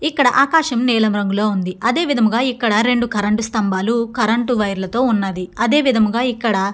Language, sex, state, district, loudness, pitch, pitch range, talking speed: Telugu, female, Andhra Pradesh, Guntur, -17 LUFS, 230 Hz, 205-245 Hz, 170 wpm